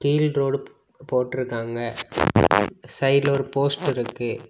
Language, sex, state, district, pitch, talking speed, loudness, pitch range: Tamil, male, Tamil Nadu, Kanyakumari, 135 Hz, 95 wpm, -23 LUFS, 120-140 Hz